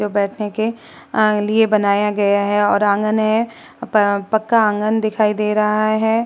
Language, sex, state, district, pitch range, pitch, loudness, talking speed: Hindi, female, Uttar Pradesh, Muzaffarnagar, 205-220 Hz, 215 Hz, -17 LUFS, 155 wpm